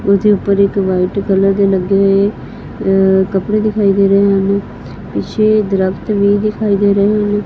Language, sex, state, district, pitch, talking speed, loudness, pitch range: Punjabi, female, Punjab, Fazilka, 200 Hz, 170 wpm, -13 LUFS, 195-205 Hz